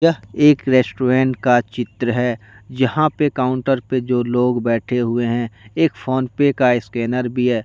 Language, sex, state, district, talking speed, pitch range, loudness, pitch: Hindi, male, Jharkhand, Deoghar, 175 wpm, 120-130 Hz, -18 LUFS, 125 Hz